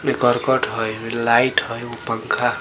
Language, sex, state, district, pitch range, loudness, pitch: Bajjika, female, Bihar, Vaishali, 115-125 Hz, -20 LUFS, 115 Hz